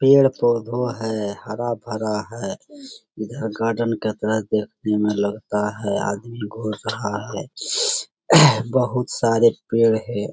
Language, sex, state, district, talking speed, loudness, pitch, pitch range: Hindi, male, Bihar, Lakhisarai, 145 wpm, -21 LUFS, 115 Hz, 110-125 Hz